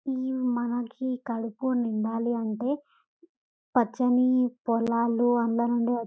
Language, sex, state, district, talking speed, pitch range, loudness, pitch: Telugu, female, Telangana, Karimnagar, 90 wpm, 235-255 Hz, -27 LUFS, 240 Hz